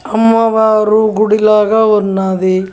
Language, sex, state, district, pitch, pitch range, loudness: Telugu, female, Andhra Pradesh, Annamaya, 215 Hz, 200-220 Hz, -11 LUFS